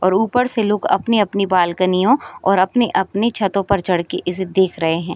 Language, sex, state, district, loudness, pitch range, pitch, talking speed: Hindi, female, Bihar, Sitamarhi, -17 LUFS, 185-220 Hz, 195 Hz, 185 wpm